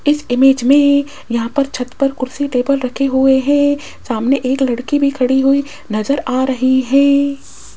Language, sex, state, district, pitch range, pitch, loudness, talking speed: Hindi, female, Rajasthan, Jaipur, 255-280 Hz, 270 Hz, -15 LUFS, 170 wpm